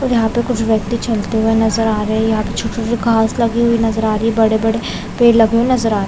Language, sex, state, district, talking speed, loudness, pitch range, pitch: Hindi, female, Chhattisgarh, Raigarh, 285 wpm, -15 LUFS, 220-235 Hz, 225 Hz